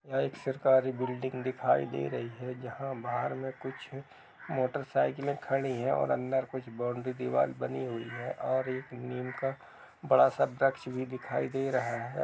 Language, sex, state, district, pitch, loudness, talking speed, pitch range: Hindi, male, Uttar Pradesh, Jalaun, 130 Hz, -32 LUFS, 170 wpm, 120-135 Hz